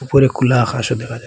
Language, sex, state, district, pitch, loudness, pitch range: Bengali, male, Assam, Hailakandi, 125 Hz, -16 LUFS, 120-135 Hz